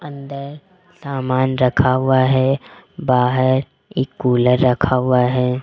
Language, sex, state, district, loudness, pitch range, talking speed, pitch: Hindi, female, Rajasthan, Jaipur, -17 LUFS, 125-140 Hz, 115 wpm, 130 Hz